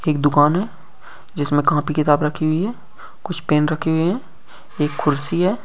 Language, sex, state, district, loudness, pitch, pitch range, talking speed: Hindi, male, Uttar Pradesh, Deoria, -19 LUFS, 155 Hz, 150-175 Hz, 180 wpm